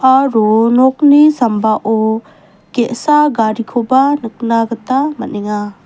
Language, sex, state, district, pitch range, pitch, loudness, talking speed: Garo, female, Meghalaya, West Garo Hills, 220-265 Hz, 230 Hz, -13 LUFS, 80 wpm